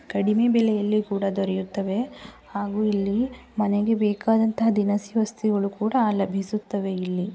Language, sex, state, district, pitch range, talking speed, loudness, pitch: Kannada, female, Karnataka, Raichur, 200-220 Hz, 105 wpm, -24 LUFS, 210 Hz